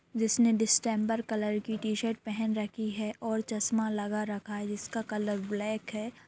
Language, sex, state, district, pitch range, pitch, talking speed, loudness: Hindi, female, Bihar, Saran, 210-225 Hz, 215 Hz, 160 wpm, -31 LUFS